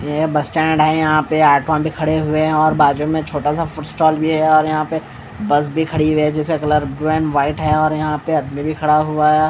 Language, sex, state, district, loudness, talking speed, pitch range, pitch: Hindi, male, Bihar, Katihar, -16 LUFS, 260 wpm, 150-155 Hz, 155 Hz